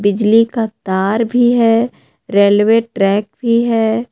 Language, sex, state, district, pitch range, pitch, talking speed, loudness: Hindi, female, Jharkhand, Palamu, 205-235 Hz, 225 Hz, 130 wpm, -14 LUFS